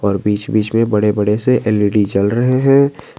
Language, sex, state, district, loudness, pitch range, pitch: Hindi, male, Jharkhand, Garhwa, -14 LUFS, 105-125 Hz, 105 Hz